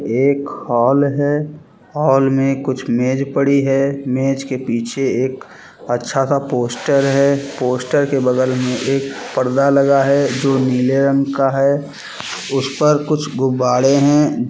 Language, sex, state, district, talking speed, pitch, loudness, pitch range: Hindi, male, Chhattisgarh, Bilaspur, 145 wpm, 135 Hz, -16 LUFS, 130-140 Hz